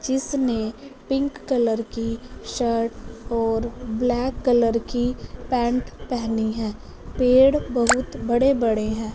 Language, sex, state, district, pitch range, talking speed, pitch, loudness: Hindi, female, Punjab, Fazilka, 230-255 Hz, 105 wpm, 240 Hz, -22 LUFS